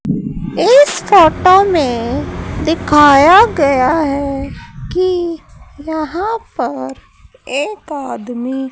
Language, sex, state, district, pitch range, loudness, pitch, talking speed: Hindi, female, Haryana, Charkhi Dadri, 275-365 Hz, -13 LUFS, 310 Hz, 75 wpm